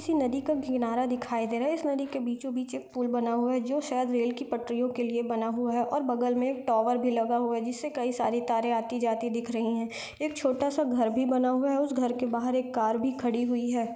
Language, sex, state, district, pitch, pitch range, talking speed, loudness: Hindi, female, Bihar, East Champaran, 245 Hz, 235-260 Hz, 275 wpm, -29 LUFS